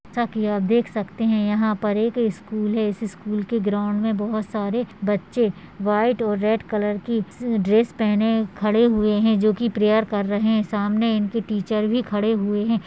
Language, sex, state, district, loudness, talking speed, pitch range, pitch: Hindi, female, Uttarakhand, Tehri Garhwal, -22 LUFS, 185 wpm, 210-225 Hz, 215 Hz